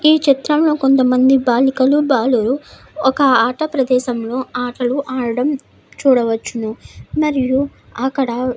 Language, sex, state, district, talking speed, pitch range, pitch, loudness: Telugu, female, Andhra Pradesh, Anantapur, 100 wpm, 245-275 Hz, 260 Hz, -16 LUFS